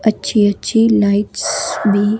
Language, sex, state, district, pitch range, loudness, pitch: Hindi, female, Himachal Pradesh, Shimla, 205-220 Hz, -15 LUFS, 210 Hz